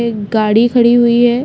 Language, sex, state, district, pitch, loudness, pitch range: Hindi, female, Chhattisgarh, Bastar, 235 Hz, -11 LUFS, 220-240 Hz